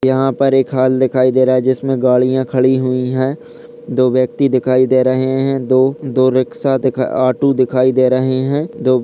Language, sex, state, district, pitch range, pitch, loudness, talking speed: Hindi, male, Bihar, Purnia, 130-135 Hz, 130 Hz, -14 LUFS, 185 wpm